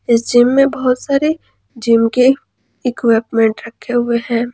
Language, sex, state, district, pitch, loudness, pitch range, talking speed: Hindi, female, Jharkhand, Ranchi, 240 Hz, -15 LUFS, 230-255 Hz, 145 wpm